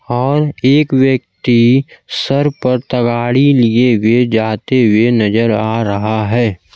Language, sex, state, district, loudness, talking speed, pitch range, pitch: Hindi, male, Bihar, Kaimur, -13 LUFS, 125 wpm, 110-130 Hz, 120 Hz